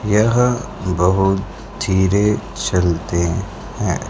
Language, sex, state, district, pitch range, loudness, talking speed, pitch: Hindi, male, Chhattisgarh, Raipur, 90-105 Hz, -18 LUFS, 75 wpm, 95 Hz